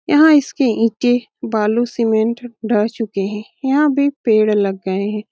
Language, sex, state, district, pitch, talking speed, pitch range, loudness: Hindi, female, Bihar, Saran, 230 Hz, 145 wpm, 210-260 Hz, -17 LUFS